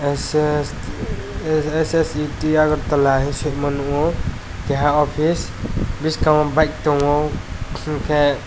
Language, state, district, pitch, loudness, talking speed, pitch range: Kokborok, Tripura, West Tripura, 145 Hz, -20 LUFS, 80 wpm, 125-150 Hz